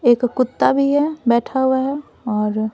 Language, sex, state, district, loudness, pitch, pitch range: Hindi, female, Bihar, Patna, -18 LUFS, 255 Hz, 235-275 Hz